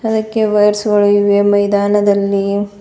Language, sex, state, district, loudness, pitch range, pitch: Kannada, female, Karnataka, Bidar, -13 LUFS, 200-210 Hz, 205 Hz